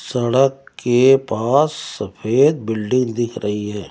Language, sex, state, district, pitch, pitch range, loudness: Hindi, male, Uttar Pradesh, Lucknow, 120 Hz, 110-135 Hz, -18 LUFS